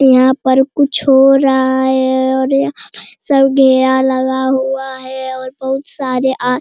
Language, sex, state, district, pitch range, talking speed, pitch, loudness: Hindi, female, Bihar, Jamui, 260-270 Hz, 175 wpm, 265 Hz, -13 LUFS